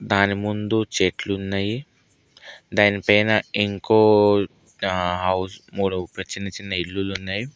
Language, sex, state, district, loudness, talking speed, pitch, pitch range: Telugu, male, Telangana, Mahabubabad, -21 LUFS, 110 wpm, 100 Hz, 95-105 Hz